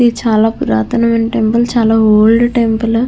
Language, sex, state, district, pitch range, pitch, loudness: Telugu, female, Andhra Pradesh, Krishna, 220-235 Hz, 230 Hz, -12 LUFS